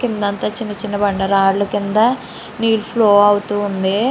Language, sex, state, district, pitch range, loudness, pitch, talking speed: Telugu, female, Andhra Pradesh, Srikakulam, 205-220 Hz, -16 LUFS, 205 Hz, 145 wpm